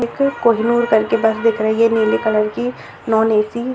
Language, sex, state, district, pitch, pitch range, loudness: Hindi, female, Bihar, Purnia, 225 Hz, 220-235 Hz, -16 LUFS